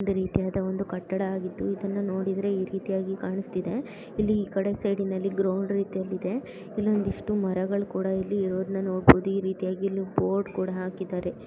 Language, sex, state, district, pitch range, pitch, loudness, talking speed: Kannada, female, Karnataka, Gulbarga, 190-200 Hz, 195 Hz, -28 LUFS, 155 wpm